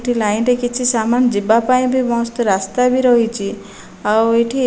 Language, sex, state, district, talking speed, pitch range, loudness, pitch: Odia, female, Odisha, Malkangiri, 140 wpm, 225-250 Hz, -16 LUFS, 235 Hz